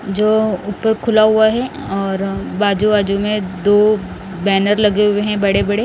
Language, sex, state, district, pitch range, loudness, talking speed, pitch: Hindi, male, Odisha, Nuapada, 195-215 Hz, -15 LUFS, 165 wpm, 205 Hz